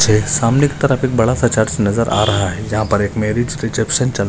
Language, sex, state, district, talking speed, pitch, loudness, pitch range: Hindi, male, Maharashtra, Nagpur, 225 wpm, 115 Hz, -16 LUFS, 105-125 Hz